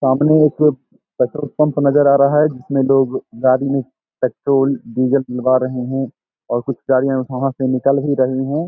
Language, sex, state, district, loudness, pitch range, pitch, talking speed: Hindi, male, Bihar, Samastipur, -16 LUFS, 130-140 Hz, 135 Hz, 180 wpm